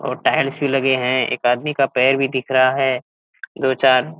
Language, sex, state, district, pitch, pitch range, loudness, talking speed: Hindi, male, Bihar, Kishanganj, 130 Hz, 130-135 Hz, -18 LUFS, 215 wpm